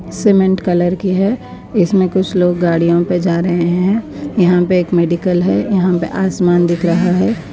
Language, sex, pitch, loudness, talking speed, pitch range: Urdu, female, 180 Hz, -14 LUFS, 190 wpm, 175-190 Hz